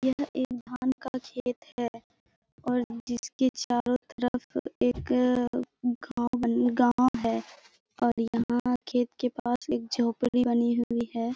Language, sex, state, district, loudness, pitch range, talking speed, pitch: Hindi, female, Bihar, Purnia, -29 LUFS, 235-250 Hz, 135 wpm, 245 Hz